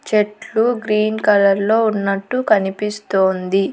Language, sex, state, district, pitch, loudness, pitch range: Telugu, female, Andhra Pradesh, Annamaya, 210 Hz, -17 LUFS, 195-220 Hz